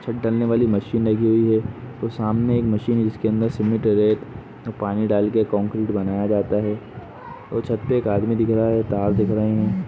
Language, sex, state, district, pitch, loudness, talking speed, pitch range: Hindi, male, Uttar Pradesh, Budaun, 110 Hz, -21 LUFS, 205 wpm, 105-115 Hz